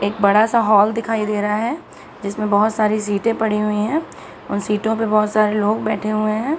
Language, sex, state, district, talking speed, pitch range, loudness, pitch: Hindi, female, Bihar, Araria, 230 wpm, 210-220 Hz, -18 LUFS, 215 Hz